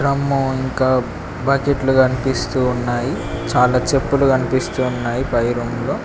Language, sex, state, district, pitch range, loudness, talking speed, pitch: Telugu, male, Telangana, Mahabubabad, 120-135 Hz, -18 LUFS, 130 wpm, 130 Hz